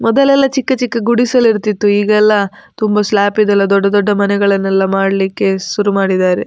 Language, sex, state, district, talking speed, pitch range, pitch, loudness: Kannada, female, Karnataka, Dakshina Kannada, 130 wpm, 195-225 Hz, 205 Hz, -13 LUFS